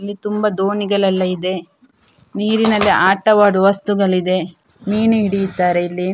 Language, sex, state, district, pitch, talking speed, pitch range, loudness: Kannada, female, Karnataka, Dakshina Kannada, 195 Hz, 90 wpm, 185-210 Hz, -16 LUFS